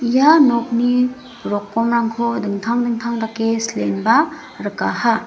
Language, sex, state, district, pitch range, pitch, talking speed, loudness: Garo, female, Meghalaya, West Garo Hills, 225-240 Hz, 235 Hz, 90 wpm, -18 LUFS